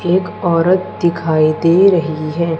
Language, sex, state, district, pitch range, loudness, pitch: Hindi, female, Madhya Pradesh, Umaria, 160-180 Hz, -14 LUFS, 170 Hz